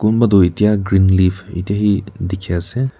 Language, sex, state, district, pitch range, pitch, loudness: Nagamese, male, Nagaland, Kohima, 95-105 Hz, 100 Hz, -16 LUFS